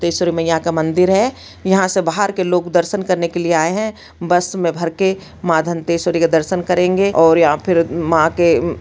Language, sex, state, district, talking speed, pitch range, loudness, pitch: Hindi, female, Chhattisgarh, Bastar, 205 wpm, 165-185 Hz, -16 LUFS, 175 Hz